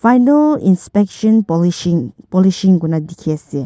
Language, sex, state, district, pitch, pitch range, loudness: Nagamese, female, Nagaland, Dimapur, 185 Hz, 165-220 Hz, -14 LUFS